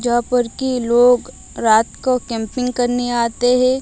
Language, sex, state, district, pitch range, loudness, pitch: Hindi, female, Odisha, Malkangiri, 235-250 Hz, -17 LUFS, 245 Hz